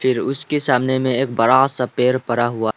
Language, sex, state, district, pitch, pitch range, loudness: Hindi, male, Arunachal Pradesh, Lower Dibang Valley, 130 Hz, 120-130 Hz, -18 LUFS